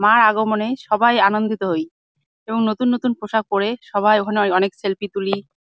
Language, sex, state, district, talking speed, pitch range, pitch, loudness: Bengali, female, West Bengal, Jalpaiguri, 170 wpm, 200-220 Hz, 215 Hz, -19 LUFS